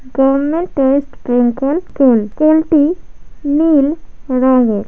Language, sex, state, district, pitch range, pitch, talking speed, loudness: Bengali, female, West Bengal, Malda, 255-310 Hz, 275 Hz, 75 wpm, -13 LUFS